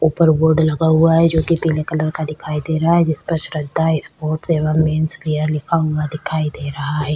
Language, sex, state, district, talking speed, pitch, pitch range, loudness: Hindi, female, Chhattisgarh, Sukma, 210 wpm, 155 Hz, 155-160 Hz, -17 LUFS